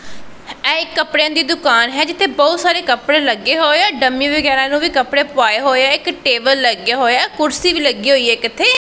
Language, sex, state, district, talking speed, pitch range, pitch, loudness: Punjabi, female, Punjab, Pathankot, 225 wpm, 260-315 Hz, 285 Hz, -13 LUFS